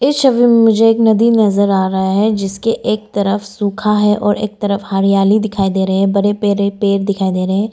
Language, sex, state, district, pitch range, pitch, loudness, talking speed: Hindi, female, Arunachal Pradesh, Lower Dibang Valley, 195-220 Hz, 205 Hz, -14 LUFS, 235 wpm